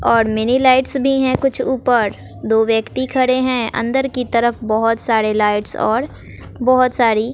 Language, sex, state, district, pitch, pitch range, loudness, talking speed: Hindi, female, Bihar, West Champaran, 240 Hz, 225-260 Hz, -16 LUFS, 165 wpm